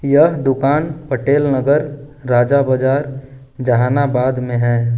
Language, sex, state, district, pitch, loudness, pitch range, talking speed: Hindi, male, Jharkhand, Ranchi, 135 Hz, -16 LUFS, 130-145 Hz, 110 wpm